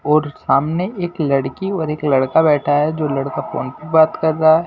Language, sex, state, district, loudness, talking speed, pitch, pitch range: Hindi, male, Delhi, New Delhi, -17 LUFS, 220 wpm, 155 Hz, 140-160 Hz